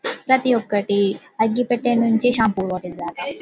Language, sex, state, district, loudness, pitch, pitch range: Telugu, female, Telangana, Karimnagar, -20 LUFS, 225 Hz, 195-245 Hz